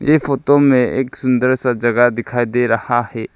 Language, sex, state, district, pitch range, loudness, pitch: Hindi, male, Arunachal Pradesh, Lower Dibang Valley, 120-135 Hz, -15 LUFS, 125 Hz